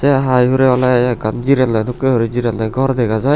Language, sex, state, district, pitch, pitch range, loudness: Chakma, male, Tripura, Unakoti, 125 Hz, 115-135 Hz, -15 LUFS